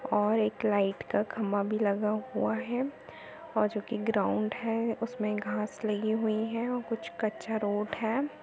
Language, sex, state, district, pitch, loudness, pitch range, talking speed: Hindi, female, Uttar Pradesh, Budaun, 220 Hz, -31 LUFS, 210-230 Hz, 165 wpm